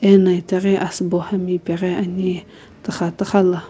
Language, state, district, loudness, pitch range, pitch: Sumi, Nagaland, Kohima, -19 LUFS, 180-195 Hz, 185 Hz